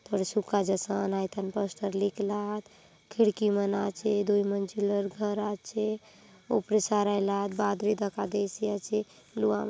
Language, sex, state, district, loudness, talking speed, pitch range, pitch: Halbi, female, Chhattisgarh, Bastar, -30 LUFS, 150 wpm, 200-210 Hz, 205 Hz